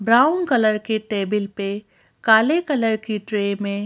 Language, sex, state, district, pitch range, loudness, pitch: Hindi, female, Madhya Pradesh, Bhopal, 205-235 Hz, -20 LUFS, 215 Hz